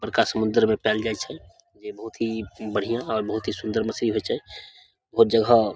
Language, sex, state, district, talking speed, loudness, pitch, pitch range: Maithili, male, Bihar, Samastipur, 200 wpm, -24 LUFS, 115 Hz, 110-120 Hz